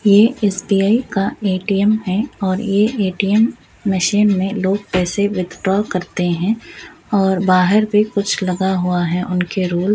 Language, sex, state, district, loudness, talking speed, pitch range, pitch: Hindi, female, Bihar, Muzaffarpur, -17 LUFS, 150 wpm, 185-205 Hz, 195 Hz